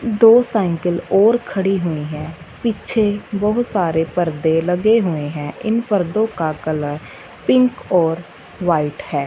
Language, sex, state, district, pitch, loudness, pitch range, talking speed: Hindi, female, Punjab, Fazilka, 180 Hz, -18 LUFS, 160-220 Hz, 135 wpm